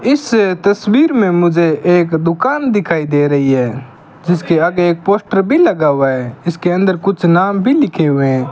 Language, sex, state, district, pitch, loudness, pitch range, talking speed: Hindi, male, Rajasthan, Bikaner, 175 Hz, -13 LUFS, 155-200 Hz, 185 wpm